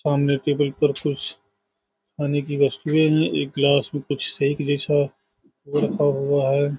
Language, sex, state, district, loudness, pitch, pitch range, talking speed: Hindi, male, Bihar, Saharsa, -22 LUFS, 145 Hz, 140-145 Hz, 150 wpm